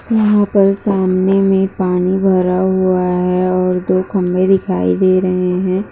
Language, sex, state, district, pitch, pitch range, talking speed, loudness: Hindi, female, Bihar, Purnia, 185 Hz, 185-195 Hz, 150 wpm, -14 LUFS